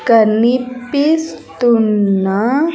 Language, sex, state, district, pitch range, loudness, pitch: Telugu, female, Andhra Pradesh, Sri Satya Sai, 215-280 Hz, -14 LUFS, 240 Hz